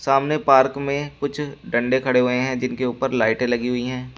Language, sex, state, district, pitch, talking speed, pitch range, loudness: Hindi, male, Uttar Pradesh, Shamli, 130 Hz, 115 wpm, 125-140 Hz, -21 LUFS